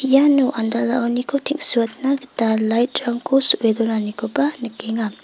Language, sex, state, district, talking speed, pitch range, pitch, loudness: Garo, female, Meghalaya, West Garo Hills, 90 wpm, 225-270 Hz, 240 Hz, -18 LUFS